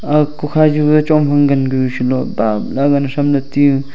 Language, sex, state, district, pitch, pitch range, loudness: Wancho, male, Arunachal Pradesh, Longding, 140 Hz, 135-150 Hz, -14 LUFS